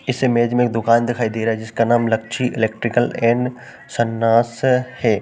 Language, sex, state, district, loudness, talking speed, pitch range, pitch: Hindi, male, Uttar Pradesh, Jalaun, -18 LUFS, 195 wpm, 115-125 Hz, 120 Hz